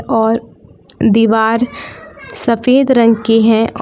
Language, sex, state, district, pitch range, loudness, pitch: Hindi, female, Jharkhand, Palamu, 225-235 Hz, -12 LUFS, 225 Hz